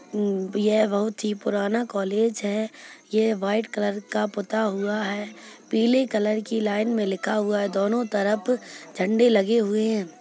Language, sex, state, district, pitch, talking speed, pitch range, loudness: Hindi, female, Chhattisgarh, Kabirdham, 215 Hz, 160 wpm, 205-220 Hz, -24 LUFS